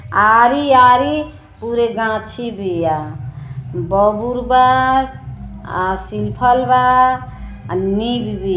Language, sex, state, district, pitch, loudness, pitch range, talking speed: Bhojpuri, female, Uttar Pradesh, Ghazipur, 225 Hz, -15 LUFS, 185-250 Hz, 85 wpm